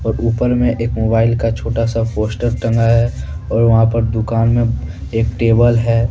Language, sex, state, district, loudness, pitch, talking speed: Hindi, male, Jharkhand, Deoghar, -15 LUFS, 115 Hz, 165 wpm